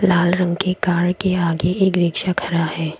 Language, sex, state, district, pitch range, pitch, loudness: Hindi, female, Assam, Kamrup Metropolitan, 170-185 Hz, 175 Hz, -19 LUFS